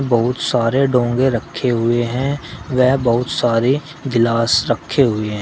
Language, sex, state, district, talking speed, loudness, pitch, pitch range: Hindi, male, Uttar Pradesh, Shamli, 145 wpm, -17 LUFS, 120 Hz, 115-130 Hz